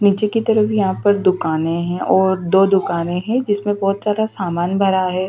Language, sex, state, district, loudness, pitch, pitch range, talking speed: Hindi, female, Delhi, New Delhi, -17 LUFS, 195 Hz, 180-205 Hz, 190 wpm